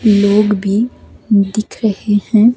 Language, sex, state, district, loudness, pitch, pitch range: Hindi, female, Himachal Pradesh, Shimla, -14 LUFS, 210 Hz, 205-215 Hz